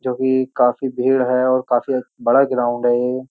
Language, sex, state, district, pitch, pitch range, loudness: Hindi, male, Uttar Pradesh, Jyotiba Phule Nagar, 130 Hz, 125-130 Hz, -18 LUFS